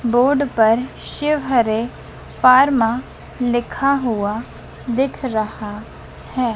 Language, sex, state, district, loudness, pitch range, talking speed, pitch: Hindi, female, Madhya Pradesh, Dhar, -18 LUFS, 225-260 Hz, 90 wpm, 240 Hz